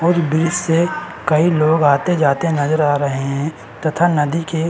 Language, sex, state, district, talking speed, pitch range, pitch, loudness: Hindi, male, Uttar Pradesh, Varanasi, 190 wpm, 145-170 Hz, 155 Hz, -17 LUFS